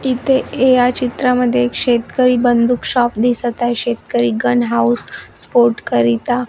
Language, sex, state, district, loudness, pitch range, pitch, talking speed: Marathi, female, Maharashtra, Washim, -15 LUFS, 230-250 Hz, 245 Hz, 140 wpm